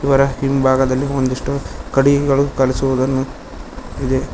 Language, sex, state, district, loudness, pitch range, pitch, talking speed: Kannada, male, Karnataka, Koppal, -17 LUFS, 130-140 Hz, 135 Hz, 85 wpm